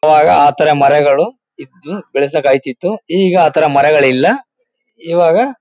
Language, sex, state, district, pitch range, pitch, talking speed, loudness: Kannada, male, Karnataka, Mysore, 145-190 Hz, 155 Hz, 120 wpm, -12 LUFS